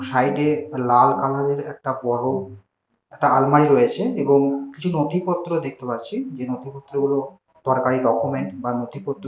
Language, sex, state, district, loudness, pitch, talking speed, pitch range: Bengali, male, Karnataka, Bangalore, -21 LUFS, 135 Hz, 125 wpm, 125-145 Hz